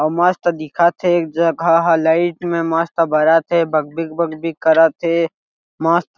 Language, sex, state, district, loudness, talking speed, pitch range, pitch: Chhattisgarhi, male, Chhattisgarh, Jashpur, -16 LUFS, 175 wpm, 160-170 Hz, 165 Hz